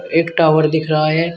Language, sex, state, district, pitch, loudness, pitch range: Hindi, male, Uttar Pradesh, Shamli, 160 Hz, -15 LUFS, 155-165 Hz